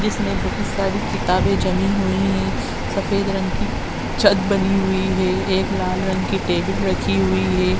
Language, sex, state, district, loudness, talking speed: Hindi, female, Uttar Pradesh, Hamirpur, -20 LUFS, 170 wpm